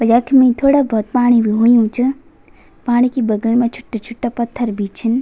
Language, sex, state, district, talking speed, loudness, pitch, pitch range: Garhwali, female, Uttarakhand, Tehri Garhwal, 170 wpm, -15 LUFS, 240 Hz, 230-250 Hz